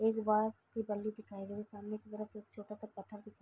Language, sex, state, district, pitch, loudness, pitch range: Hindi, female, Uttar Pradesh, Gorakhpur, 210 Hz, -40 LUFS, 210-215 Hz